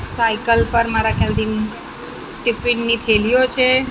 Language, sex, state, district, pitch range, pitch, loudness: Gujarati, female, Maharashtra, Mumbai Suburban, 220-245 Hz, 230 Hz, -17 LUFS